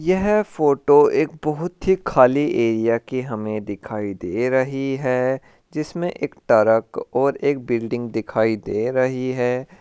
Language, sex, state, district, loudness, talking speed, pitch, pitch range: Hindi, male, Rajasthan, Churu, -20 LUFS, 135 wpm, 130 Hz, 115-145 Hz